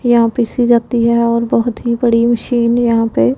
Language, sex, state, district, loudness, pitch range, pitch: Hindi, female, Punjab, Pathankot, -13 LUFS, 230-240 Hz, 235 Hz